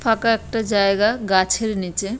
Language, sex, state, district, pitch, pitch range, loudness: Bengali, female, West Bengal, Purulia, 210 Hz, 195-225 Hz, -19 LUFS